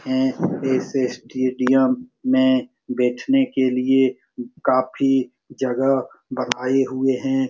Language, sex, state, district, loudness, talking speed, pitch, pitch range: Hindi, male, Bihar, Supaul, -21 LUFS, 95 wpm, 130 Hz, 130-135 Hz